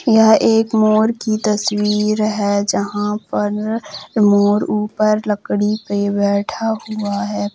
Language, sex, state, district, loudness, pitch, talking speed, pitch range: Hindi, female, Jharkhand, Jamtara, -17 LUFS, 210 Hz, 120 wpm, 205-215 Hz